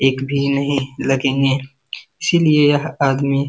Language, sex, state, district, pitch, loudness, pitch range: Hindi, male, Bihar, Jamui, 140 Hz, -17 LUFS, 135-140 Hz